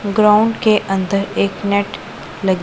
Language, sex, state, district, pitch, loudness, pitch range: Hindi, female, Punjab, Pathankot, 200 Hz, -16 LUFS, 190-210 Hz